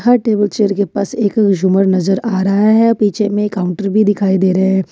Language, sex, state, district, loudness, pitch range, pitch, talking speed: Hindi, female, Jharkhand, Ranchi, -14 LUFS, 190-210 Hz, 200 Hz, 230 wpm